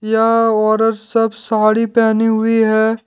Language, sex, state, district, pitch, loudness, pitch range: Hindi, male, Jharkhand, Deoghar, 225 Hz, -14 LUFS, 220-225 Hz